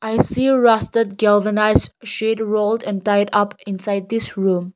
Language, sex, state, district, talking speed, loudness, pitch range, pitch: English, female, Nagaland, Kohima, 165 wpm, -18 LUFS, 205-225 Hz, 210 Hz